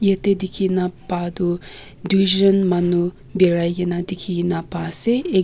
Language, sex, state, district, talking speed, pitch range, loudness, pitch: Nagamese, female, Nagaland, Kohima, 120 wpm, 175-190 Hz, -19 LUFS, 180 Hz